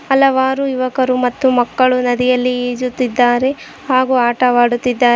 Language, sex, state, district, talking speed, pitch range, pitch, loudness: Kannada, female, Karnataka, Koppal, 95 wpm, 245-260 Hz, 250 Hz, -14 LUFS